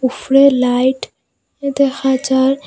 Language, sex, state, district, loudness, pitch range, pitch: Bengali, female, Assam, Hailakandi, -14 LUFS, 260-275 Hz, 265 Hz